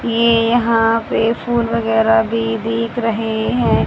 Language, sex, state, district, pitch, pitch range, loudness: Hindi, female, Haryana, Jhajjar, 230 Hz, 225-230 Hz, -16 LUFS